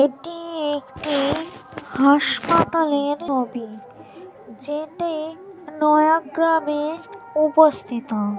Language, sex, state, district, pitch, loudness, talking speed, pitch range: Bengali, female, West Bengal, Jhargram, 300 Hz, -20 LUFS, 55 wpm, 275-320 Hz